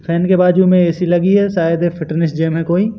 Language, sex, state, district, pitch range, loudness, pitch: Hindi, male, Madhya Pradesh, Katni, 165-185 Hz, -14 LUFS, 175 Hz